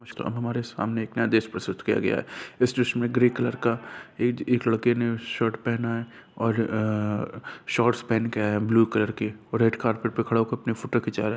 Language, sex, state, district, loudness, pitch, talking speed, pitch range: Hindi, male, Bihar, Jahanabad, -26 LUFS, 115 Hz, 225 wpm, 110-120 Hz